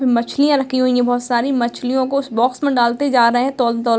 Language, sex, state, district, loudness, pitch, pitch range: Hindi, female, Bihar, Gopalganj, -17 LUFS, 245 Hz, 240-265 Hz